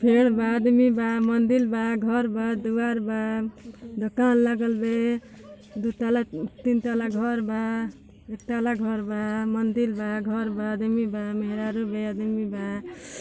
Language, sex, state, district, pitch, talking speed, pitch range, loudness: Bhojpuri, female, Uttar Pradesh, Ghazipur, 225 Hz, 155 wpm, 215-235 Hz, -25 LUFS